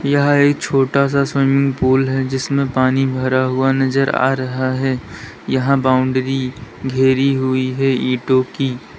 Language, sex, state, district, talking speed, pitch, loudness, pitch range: Hindi, male, Uttar Pradesh, Lalitpur, 145 wpm, 130 Hz, -16 LUFS, 130-135 Hz